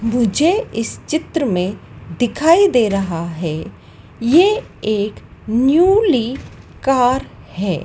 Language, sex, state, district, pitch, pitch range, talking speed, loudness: Hindi, female, Madhya Pradesh, Dhar, 235 Hz, 190-310 Hz, 105 wpm, -17 LUFS